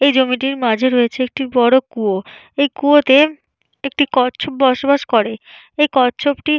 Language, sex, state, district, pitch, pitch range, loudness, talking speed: Bengali, female, West Bengal, Jalpaiguri, 265 Hz, 245-285 Hz, -15 LUFS, 145 wpm